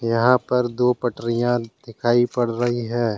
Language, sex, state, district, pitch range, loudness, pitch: Hindi, male, Jharkhand, Deoghar, 115-120 Hz, -21 LUFS, 120 Hz